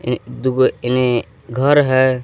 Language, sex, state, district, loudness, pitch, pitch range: Hindi, male, Jharkhand, Palamu, -16 LUFS, 130 Hz, 125-130 Hz